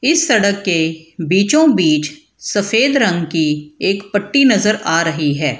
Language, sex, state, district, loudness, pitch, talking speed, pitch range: Hindi, female, Bihar, Gaya, -15 LUFS, 190 Hz, 150 wpm, 160-220 Hz